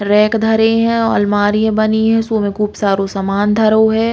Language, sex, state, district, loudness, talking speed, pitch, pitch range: Bundeli, female, Uttar Pradesh, Hamirpur, -14 LUFS, 190 wpm, 215 Hz, 205-225 Hz